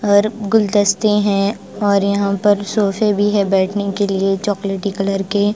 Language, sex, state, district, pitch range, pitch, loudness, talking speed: Hindi, female, Bihar, Patna, 195-205 Hz, 205 Hz, -16 LUFS, 150 wpm